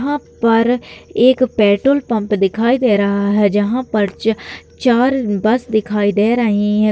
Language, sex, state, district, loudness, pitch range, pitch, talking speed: Hindi, female, Bihar, Madhepura, -15 LUFS, 205-245 Hz, 220 Hz, 155 wpm